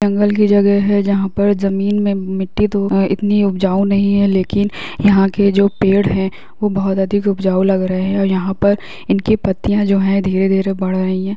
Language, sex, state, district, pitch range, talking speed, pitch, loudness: Hindi, female, Bihar, Muzaffarpur, 195-200 Hz, 205 wpm, 200 Hz, -15 LUFS